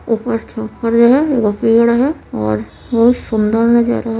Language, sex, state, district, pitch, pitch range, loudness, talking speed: Maithili, female, Bihar, Supaul, 230 Hz, 220-235 Hz, -14 LUFS, 145 wpm